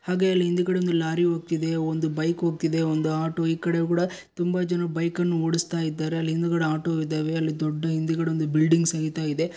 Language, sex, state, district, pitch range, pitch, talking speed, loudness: Kannada, male, Karnataka, Bellary, 160-170 Hz, 165 Hz, 190 wpm, -25 LUFS